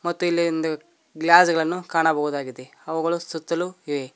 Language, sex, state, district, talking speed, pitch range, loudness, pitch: Kannada, male, Karnataka, Koppal, 130 wpm, 155-170 Hz, -22 LUFS, 165 Hz